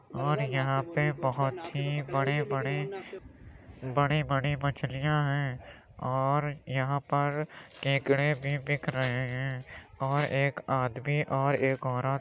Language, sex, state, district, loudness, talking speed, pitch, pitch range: Hindi, male, Uttar Pradesh, Jyotiba Phule Nagar, -30 LUFS, 120 wpm, 140 Hz, 130-145 Hz